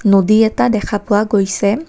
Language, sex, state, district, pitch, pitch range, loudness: Assamese, female, Assam, Kamrup Metropolitan, 210 Hz, 200-225 Hz, -14 LUFS